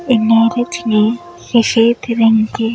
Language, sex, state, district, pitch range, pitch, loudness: Hindi, female, Madhya Pradesh, Bhopal, 225-240 Hz, 230 Hz, -13 LUFS